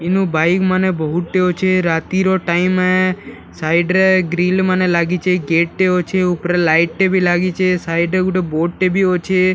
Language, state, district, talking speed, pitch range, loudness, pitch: Sambalpuri, Odisha, Sambalpur, 200 wpm, 170-185 Hz, -15 LUFS, 180 Hz